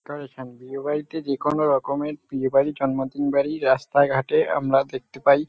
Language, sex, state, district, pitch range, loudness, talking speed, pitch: Bengali, male, West Bengal, North 24 Parganas, 135-145 Hz, -23 LUFS, 155 wpm, 140 Hz